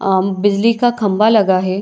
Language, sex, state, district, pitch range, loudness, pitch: Hindi, female, Chhattisgarh, Bilaspur, 190-220 Hz, -14 LUFS, 200 Hz